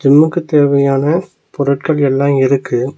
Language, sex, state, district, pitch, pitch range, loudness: Tamil, male, Tamil Nadu, Nilgiris, 140 Hz, 135-150 Hz, -13 LUFS